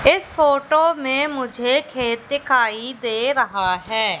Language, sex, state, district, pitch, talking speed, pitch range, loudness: Hindi, female, Madhya Pradesh, Katni, 260 Hz, 130 wpm, 230-285 Hz, -19 LUFS